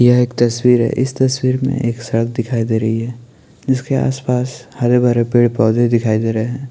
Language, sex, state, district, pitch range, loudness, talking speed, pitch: Hindi, male, Maharashtra, Chandrapur, 115-130 Hz, -16 LUFS, 215 wpm, 120 Hz